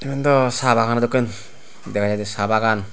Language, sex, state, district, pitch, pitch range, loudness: Chakma, male, Tripura, Unakoti, 115 Hz, 105-125 Hz, -19 LUFS